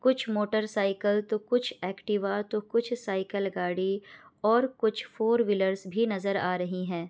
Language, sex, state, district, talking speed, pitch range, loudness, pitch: Hindi, female, Bihar, Kishanganj, 150 wpm, 190-220 Hz, -29 LUFS, 205 Hz